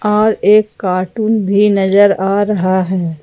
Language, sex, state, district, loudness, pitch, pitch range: Hindi, female, Jharkhand, Ranchi, -13 LUFS, 200 Hz, 185-210 Hz